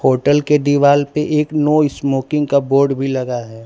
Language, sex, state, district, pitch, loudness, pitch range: Hindi, male, Gujarat, Valsad, 140 Hz, -15 LUFS, 135-150 Hz